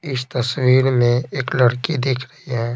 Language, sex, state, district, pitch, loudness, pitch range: Hindi, male, Bihar, Patna, 130 Hz, -19 LUFS, 125-135 Hz